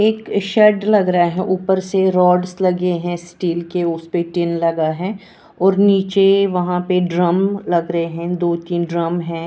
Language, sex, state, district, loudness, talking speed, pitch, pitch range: Hindi, female, Maharashtra, Washim, -17 LUFS, 175 wpm, 180 Hz, 170-195 Hz